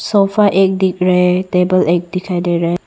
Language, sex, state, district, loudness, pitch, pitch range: Hindi, female, Arunachal Pradesh, Lower Dibang Valley, -14 LUFS, 180 Hz, 180-190 Hz